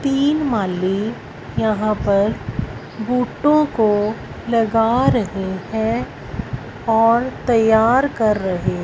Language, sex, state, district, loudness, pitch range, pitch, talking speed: Hindi, female, Punjab, Fazilka, -18 LUFS, 210-245 Hz, 225 Hz, 90 wpm